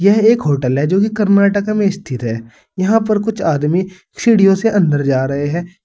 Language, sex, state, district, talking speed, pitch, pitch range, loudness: Hindi, male, Uttar Pradesh, Saharanpur, 205 wpm, 190 Hz, 145-210 Hz, -15 LUFS